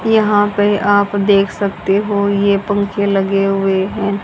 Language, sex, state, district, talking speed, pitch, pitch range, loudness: Hindi, female, Haryana, Charkhi Dadri, 155 wpm, 200 Hz, 195-205 Hz, -15 LUFS